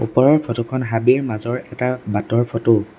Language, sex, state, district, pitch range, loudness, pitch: Assamese, male, Assam, Sonitpur, 115-125 Hz, -19 LUFS, 120 Hz